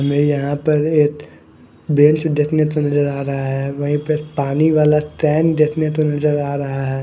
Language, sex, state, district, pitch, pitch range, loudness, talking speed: Hindi, male, Haryana, Charkhi Dadri, 150 Hz, 140-155 Hz, -17 LUFS, 190 wpm